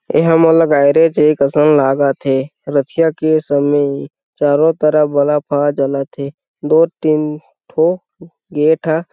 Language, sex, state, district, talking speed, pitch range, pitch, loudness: Chhattisgarhi, male, Chhattisgarh, Sarguja, 150 wpm, 140-160 Hz, 150 Hz, -14 LUFS